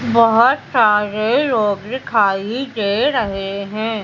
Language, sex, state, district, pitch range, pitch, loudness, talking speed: Hindi, female, Madhya Pradesh, Umaria, 205-235 Hz, 215 Hz, -17 LUFS, 105 wpm